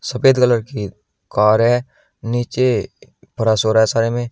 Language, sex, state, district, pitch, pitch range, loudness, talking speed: Hindi, male, Uttar Pradesh, Shamli, 120 Hz, 110-125 Hz, -17 LUFS, 165 wpm